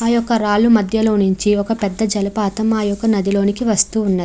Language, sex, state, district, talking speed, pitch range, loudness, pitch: Telugu, female, Andhra Pradesh, Chittoor, 170 wpm, 200-220 Hz, -16 LUFS, 210 Hz